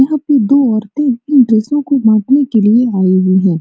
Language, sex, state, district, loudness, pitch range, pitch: Hindi, female, Bihar, Supaul, -11 LUFS, 215-280 Hz, 245 Hz